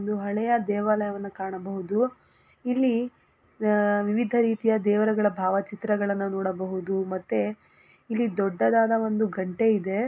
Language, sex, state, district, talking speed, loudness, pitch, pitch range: Kannada, female, Karnataka, Gulbarga, 100 wpm, -26 LUFS, 205 Hz, 195-225 Hz